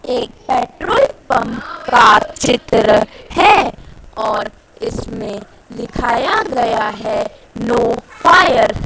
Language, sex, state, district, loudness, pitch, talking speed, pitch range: Hindi, female, Madhya Pradesh, Dhar, -14 LUFS, 240 Hz, 95 wpm, 230-340 Hz